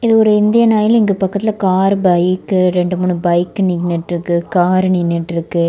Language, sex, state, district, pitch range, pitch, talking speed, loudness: Tamil, female, Tamil Nadu, Kanyakumari, 175-200 Hz, 185 Hz, 170 wpm, -14 LUFS